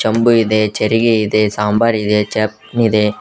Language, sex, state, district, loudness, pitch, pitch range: Kannada, male, Karnataka, Koppal, -14 LUFS, 110 Hz, 105-115 Hz